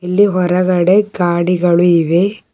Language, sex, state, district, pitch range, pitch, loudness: Kannada, female, Karnataka, Bidar, 175-185 Hz, 180 Hz, -13 LUFS